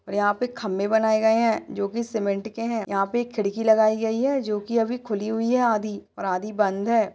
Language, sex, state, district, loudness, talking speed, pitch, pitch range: Hindi, female, Uttar Pradesh, Budaun, -24 LUFS, 225 wpm, 220 Hz, 205-230 Hz